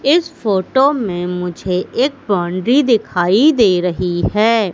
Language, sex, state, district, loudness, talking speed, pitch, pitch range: Hindi, female, Madhya Pradesh, Katni, -15 LUFS, 125 wpm, 205 Hz, 180-260 Hz